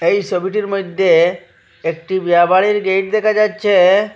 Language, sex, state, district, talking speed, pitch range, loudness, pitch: Bengali, male, Assam, Hailakandi, 130 wpm, 180-205 Hz, -15 LUFS, 190 Hz